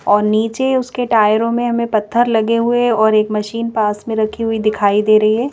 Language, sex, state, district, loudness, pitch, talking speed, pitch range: Hindi, female, Madhya Pradesh, Bhopal, -15 LUFS, 225 Hz, 230 wpm, 215-235 Hz